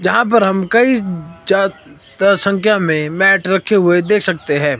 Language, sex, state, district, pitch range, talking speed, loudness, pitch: Hindi, male, Himachal Pradesh, Shimla, 175-205 Hz, 175 wpm, -14 LUFS, 195 Hz